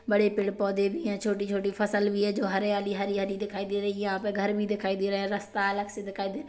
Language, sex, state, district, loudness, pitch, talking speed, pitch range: Hindi, female, Chhattisgarh, Kabirdham, -29 LUFS, 200 Hz, 260 wpm, 200-205 Hz